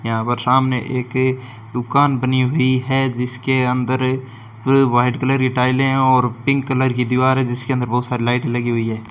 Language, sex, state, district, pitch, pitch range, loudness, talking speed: Hindi, male, Rajasthan, Bikaner, 130 Hz, 120-130 Hz, -18 LUFS, 190 wpm